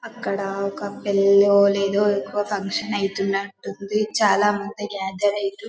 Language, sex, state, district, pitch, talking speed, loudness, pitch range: Telugu, female, Telangana, Karimnagar, 200 Hz, 125 wpm, -21 LUFS, 195-205 Hz